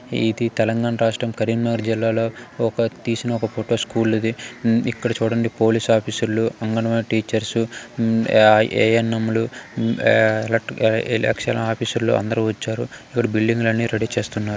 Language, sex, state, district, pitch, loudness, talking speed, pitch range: Telugu, male, Telangana, Karimnagar, 115 Hz, -20 LUFS, 145 wpm, 110-115 Hz